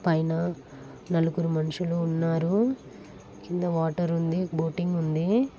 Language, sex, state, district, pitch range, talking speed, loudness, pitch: Telugu, female, Telangana, Karimnagar, 165-175 Hz, 95 wpm, -27 LUFS, 165 Hz